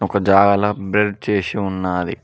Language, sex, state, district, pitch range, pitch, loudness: Telugu, male, Telangana, Mahabubabad, 95-105 Hz, 100 Hz, -18 LUFS